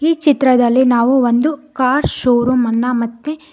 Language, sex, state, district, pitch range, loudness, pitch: Kannada, female, Karnataka, Koppal, 240-290 Hz, -14 LUFS, 255 Hz